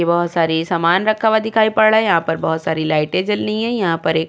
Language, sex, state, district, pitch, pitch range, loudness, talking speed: Hindi, female, Uttar Pradesh, Jyotiba Phule Nagar, 170 Hz, 160-215 Hz, -16 LUFS, 295 wpm